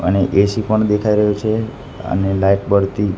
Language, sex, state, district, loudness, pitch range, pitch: Gujarati, male, Gujarat, Gandhinagar, -16 LUFS, 95-110 Hz, 100 Hz